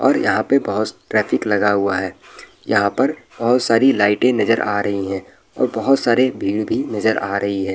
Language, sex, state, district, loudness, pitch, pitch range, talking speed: Hindi, male, Bihar, Araria, -18 LUFS, 105 Hz, 100-115 Hz, 200 wpm